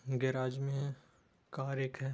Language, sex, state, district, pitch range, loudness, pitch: Hindi, male, Bihar, Bhagalpur, 130-135 Hz, -38 LUFS, 135 Hz